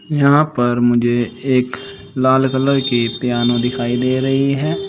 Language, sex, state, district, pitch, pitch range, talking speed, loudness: Hindi, male, Uttar Pradesh, Saharanpur, 125 Hz, 120-135 Hz, 145 wpm, -16 LUFS